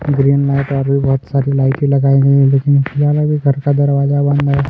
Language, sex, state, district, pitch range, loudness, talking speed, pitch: Hindi, male, Chhattisgarh, Kabirdham, 135-145 Hz, -13 LUFS, 215 wpm, 140 Hz